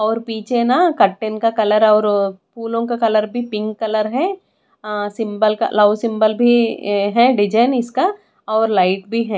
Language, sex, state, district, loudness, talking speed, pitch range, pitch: Hindi, female, Odisha, Khordha, -17 LUFS, 180 wpm, 210-235 Hz, 220 Hz